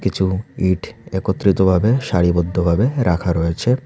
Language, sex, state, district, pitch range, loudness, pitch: Bengali, male, Tripura, Unakoti, 90-110 Hz, -18 LUFS, 95 Hz